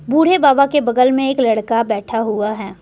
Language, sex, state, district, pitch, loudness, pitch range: Hindi, female, Jharkhand, Deoghar, 240 Hz, -15 LUFS, 215-275 Hz